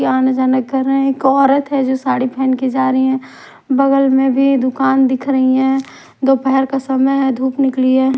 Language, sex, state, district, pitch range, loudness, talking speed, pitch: Hindi, female, Odisha, Khordha, 260-270 Hz, -14 LUFS, 220 wpm, 265 Hz